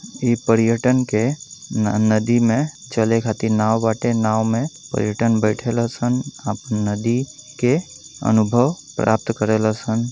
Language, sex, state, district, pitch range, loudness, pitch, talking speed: Bhojpuri, male, Uttar Pradesh, Deoria, 110-125 Hz, -19 LUFS, 115 Hz, 135 wpm